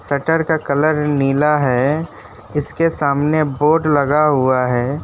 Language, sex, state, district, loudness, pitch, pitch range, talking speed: Hindi, male, West Bengal, Alipurduar, -16 LUFS, 145 Hz, 135-155 Hz, 130 wpm